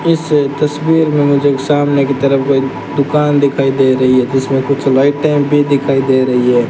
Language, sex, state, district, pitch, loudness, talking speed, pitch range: Hindi, male, Rajasthan, Bikaner, 140 Hz, -12 LUFS, 195 wpm, 135-145 Hz